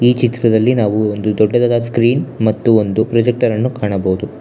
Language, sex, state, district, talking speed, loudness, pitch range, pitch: Kannada, male, Karnataka, Bangalore, 135 wpm, -15 LUFS, 105-120 Hz, 115 Hz